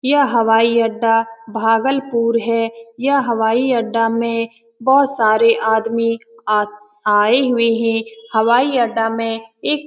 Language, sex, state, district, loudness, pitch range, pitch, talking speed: Hindi, female, Bihar, Saran, -16 LUFS, 225-235 Hz, 230 Hz, 120 wpm